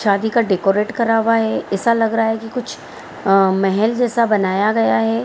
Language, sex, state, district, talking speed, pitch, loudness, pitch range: Hindi, female, Bihar, Saharsa, 205 wpm, 220 Hz, -17 LUFS, 195-230 Hz